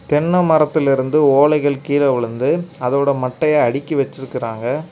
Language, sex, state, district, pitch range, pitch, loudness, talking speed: Tamil, male, Tamil Nadu, Kanyakumari, 135-155 Hz, 140 Hz, -17 LUFS, 110 wpm